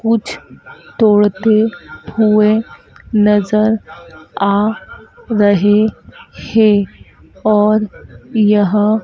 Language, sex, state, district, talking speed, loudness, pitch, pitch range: Hindi, female, Madhya Pradesh, Dhar, 60 wpm, -14 LUFS, 210 Hz, 205-220 Hz